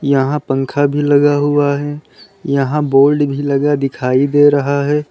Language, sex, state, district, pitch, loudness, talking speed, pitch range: Hindi, male, Uttar Pradesh, Lalitpur, 145 Hz, -14 LUFS, 165 wpm, 140-145 Hz